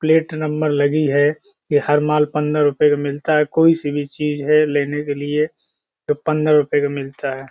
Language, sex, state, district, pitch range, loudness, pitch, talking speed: Hindi, male, Uttar Pradesh, Hamirpur, 145-155 Hz, -18 LUFS, 150 Hz, 200 wpm